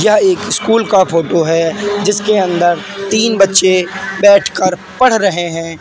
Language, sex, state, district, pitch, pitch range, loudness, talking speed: Hindi, male, Uttar Pradesh, Lalitpur, 195 Hz, 175-205 Hz, -12 LUFS, 145 wpm